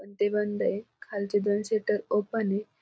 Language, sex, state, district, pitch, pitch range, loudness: Marathi, female, Maharashtra, Aurangabad, 205 Hz, 205-210 Hz, -29 LUFS